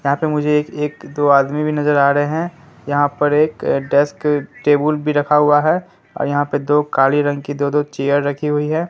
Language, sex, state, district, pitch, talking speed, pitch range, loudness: Hindi, male, Bihar, Katihar, 145 Hz, 230 wpm, 145-150 Hz, -17 LUFS